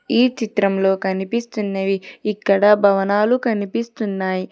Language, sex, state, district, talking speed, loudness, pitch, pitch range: Telugu, female, Telangana, Hyderabad, 80 wpm, -19 LUFS, 205 Hz, 195-230 Hz